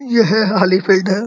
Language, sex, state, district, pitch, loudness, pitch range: Hindi, male, Uttar Pradesh, Muzaffarnagar, 200 Hz, -14 LUFS, 190-225 Hz